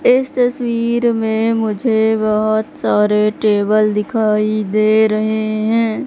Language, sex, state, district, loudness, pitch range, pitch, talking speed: Hindi, female, Madhya Pradesh, Katni, -15 LUFS, 215-230 Hz, 220 Hz, 110 wpm